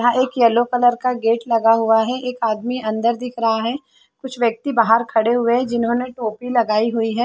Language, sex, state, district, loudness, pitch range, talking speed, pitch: Hindi, female, Chhattisgarh, Bilaspur, -18 LUFS, 225-245 Hz, 215 wpm, 235 Hz